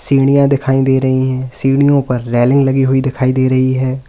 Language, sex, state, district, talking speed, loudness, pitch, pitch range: Hindi, male, Uttar Pradesh, Lalitpur, 205 wpm, -13 LUFS, 130 Hz, 130-135 Hz